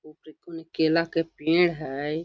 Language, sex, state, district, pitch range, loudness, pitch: Magahi, female, Bihar, Gaya, 155-165 Hz, -25 LUFS, 160 Hz